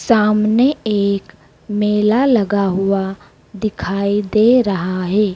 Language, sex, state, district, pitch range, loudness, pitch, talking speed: Hindi, female, Madhya Pradesh, Dhar, 200-215 Hz, -16 LUFS, 210 Hz, 100 wpm